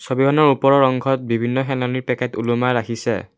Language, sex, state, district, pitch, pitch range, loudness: Assamese, male, Assam, Kamrup Metropolitan, 125 Hz, 120-135 Hz, -18 LUFS